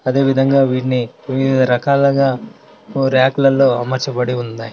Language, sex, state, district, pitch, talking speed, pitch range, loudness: Telugu, male, Telangana, Mahabubabad, 130 Hz, 100 wpm, 125-135 Hz, -15 LUFS